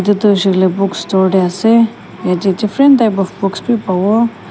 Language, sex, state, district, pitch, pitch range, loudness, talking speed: Nagamese, female, Nagaland, Kohima, 195 Hz, 185-225 Hz, -13 LUFS, 175 wpm